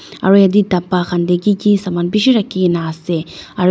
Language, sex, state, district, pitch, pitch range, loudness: Nagamese, female, Nagaland, Dimapur, 180 Hz, 175-205 Hz, -14 LUFS